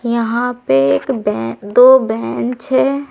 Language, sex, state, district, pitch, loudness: Hindi, female, Uttar Pradesh, Saharanpur, 235 Hz, -14 LUFS